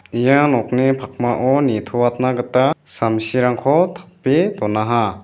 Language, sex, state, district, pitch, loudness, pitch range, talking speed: Garo, male, Meghalaya, West Garo Hills, 130 Hz, -17 LUFS, 120-140 Hz, 90 wpm